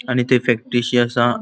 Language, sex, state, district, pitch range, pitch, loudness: Konkani, male, Goa, North and South Goa, 120-125 Hz, 120 Hz, -18 LUFS